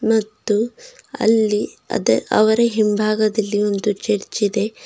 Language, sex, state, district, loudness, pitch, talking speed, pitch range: Kannada, female, Karnataka, Bidar, -19 LUFS, 215 Hz, 100 wpm, 210-225 Hz